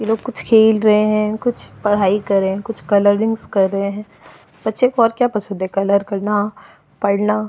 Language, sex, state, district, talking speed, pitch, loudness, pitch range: Hindi, female, Goa, North and South Goa, 190 wpm, 210 Hz, -17 LUFS, 200-220 Hz